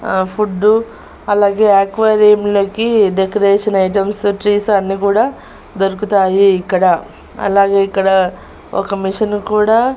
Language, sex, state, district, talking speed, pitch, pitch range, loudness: Telugu, female, Andhra Pradesh, Annamaya, 100 wpm, 200 Hz, 195-210 Hz, -13 LUFS